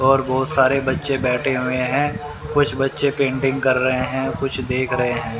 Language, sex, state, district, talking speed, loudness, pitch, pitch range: Hindi, male, Haryana, Rohtak, 190 wpm, -20 LUFS, 130 Hz, 130-135 Hz